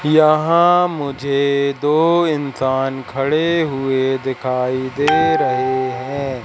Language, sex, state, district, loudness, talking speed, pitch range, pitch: Hindi, male, Madhya Pradesh, Katni, -17 LUFS, 95 wpm, 130-155 Hz, 140 Hz